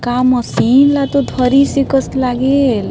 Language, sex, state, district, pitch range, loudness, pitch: Chhattisgarhi, female, Chhattisgarh, Sarguja, 250-275 Hz, -13 LUFS, 265 Hz